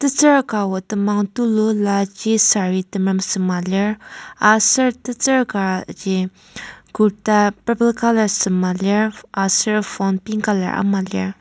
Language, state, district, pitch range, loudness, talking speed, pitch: Ao, Nagaland, Kohima, 190-220 Hz, -18 LUFS, 120 wpm, 205 Hz